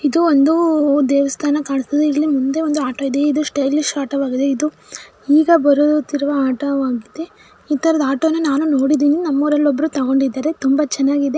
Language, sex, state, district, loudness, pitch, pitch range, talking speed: Kannada, male, Karnataka, Mysore, -16 LUFS, 290 Hz, 275-300 Hz, 150 wpm